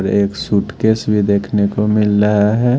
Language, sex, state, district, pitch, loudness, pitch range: Hindi, male, Haryana, Jhajjar, 105 Hz, -15 LUFS, 100-105 Hz